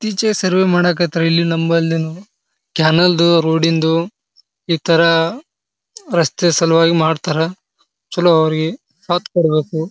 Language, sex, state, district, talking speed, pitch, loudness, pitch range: Kannada, male, Karnataka, Bijapur, 105 wpm, 165 Hz, -15 LUFS, 165-180 Hz